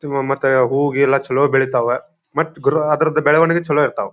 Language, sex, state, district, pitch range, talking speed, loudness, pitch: Kannada, male, Karnataka, Dharwad, 135-155 Hz, 175 wpm, -17 LUFS, 145 Hz